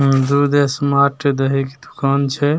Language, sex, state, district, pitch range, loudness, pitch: Maithili, male, Bihar, Begusarai, 135-145 Hz, -16 LUFS, 140 Hz